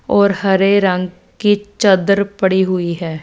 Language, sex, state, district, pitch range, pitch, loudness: Hindi, female, Punjab, Fazilka, 185-200 Hz, 195 Hz, -15 LUFS